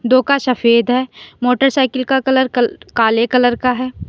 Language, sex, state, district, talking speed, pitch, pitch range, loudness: Hindi, female, Uttar Pradesh, Lalitpur, 175 wpm, 250 Hz, 240-260 Hz, -15 LUFS